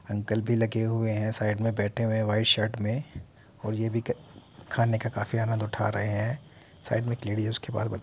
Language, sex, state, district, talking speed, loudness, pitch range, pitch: Hindi, male, Uttar Pradesh, Muzaffarnagar, 240 wpm, -28 LUFS, 105-115 Hz, 110 Hz